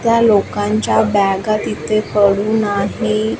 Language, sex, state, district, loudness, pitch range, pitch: Marathi, female, Maharashtra, Washim, -15 LUFS, 200-215 Hz, 205 Hz